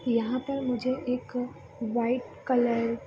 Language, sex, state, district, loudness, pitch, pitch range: Hindi, female, Bihar, Araria, -29 LUFS, 245 Hz, 235-255 Hz